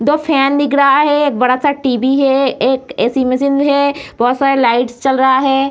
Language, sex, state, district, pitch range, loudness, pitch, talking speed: Hindi, female, Bihar, Gaya, 255-280 Hz, -13 LUFS, 270 Hz, 210 wpm